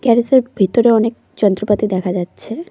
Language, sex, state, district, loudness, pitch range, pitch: Bengali, female, West Bengal, Cooch Behar, -15 LUFS, 195-240 Hz, 220 Hz